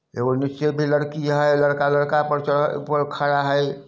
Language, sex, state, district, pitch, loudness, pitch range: Hindi, male, Bihar, Samastipur, 145 Hz, -21 LUFS, 145-150 Hz